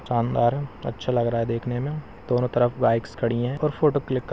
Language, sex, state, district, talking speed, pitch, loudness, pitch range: Hindi, male, Bihar, Bhagalpur, 220 wpm, 125 Hz, -24 LUFS, 115-135 Hz